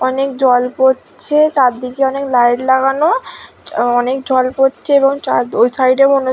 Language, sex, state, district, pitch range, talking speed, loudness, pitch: Bengali, female, West Bengal, Dakshin Dinajpur, 255-275 Hz, 150 wpm, -14 LUFS, 265 Hz